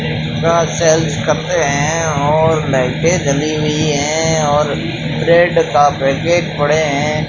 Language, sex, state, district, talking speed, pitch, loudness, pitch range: Hindi, male, Rajasthan, Jaisalmer, 125 wpm, 155 Hz, -14 LUFS, 145-160 Hz